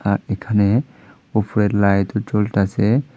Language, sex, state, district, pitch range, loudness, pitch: Bengali, male, Tripura, Unakoti, 100-110 Hz, -19 LUFS, 105 Hz